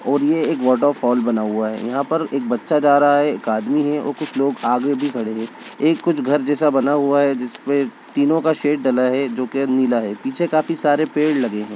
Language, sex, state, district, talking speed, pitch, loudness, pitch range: Hindi, male, Bihar, Begusarai, 245 wpm, 140 Hz, -19 LUFS, 125-150 Hz